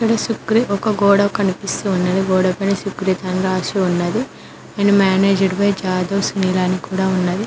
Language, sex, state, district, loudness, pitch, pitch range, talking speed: Telugu, female, Telangana, Mahabubabad, -17 LUFS, 195 Hz, 185-200 Hz, 150 wpm